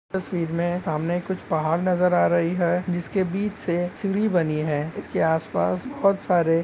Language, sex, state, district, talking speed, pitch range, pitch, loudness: Hindi, male, Jharkhand, Sahebganj, 170 wpm, 160-190 Hz, 175 Hz, -24 LUFS